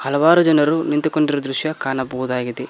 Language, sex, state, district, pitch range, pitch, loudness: Kannada, male, Karnataka, Koppal, 130-155 Hz, 150 Hz, -18 LUFS